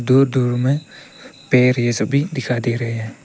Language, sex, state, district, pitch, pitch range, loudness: Hindi, male, Arunachal Pradesh, Papum Pare, 125 Hz, 120-135 Hz, -18 LUFS